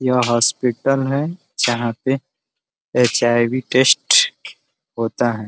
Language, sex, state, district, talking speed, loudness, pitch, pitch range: Hindi, male, Uttar Pradesh, Ghazipur, 120 wpm, -17 LUFS, 125 Hz, 120-135 Hz